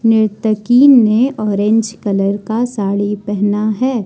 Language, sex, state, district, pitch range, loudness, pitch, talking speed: Hindi, male, Jharkhand, Deoghar, 205-230 Hz, -14 LUFS, 215 Hz, 120 wpm